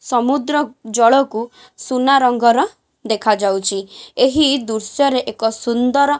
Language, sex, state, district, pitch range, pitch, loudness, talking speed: Odia, female, Odisha, Khordha, 220-275 Hz, 245 Hz, -16 LUFS, 115 wpm